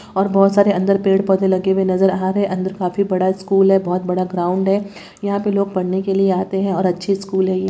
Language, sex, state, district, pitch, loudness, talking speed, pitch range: Hindi, female, Bihar, Vaishali, 190 Hz, -17 LUFS, 255 wpm, 185-195 Hz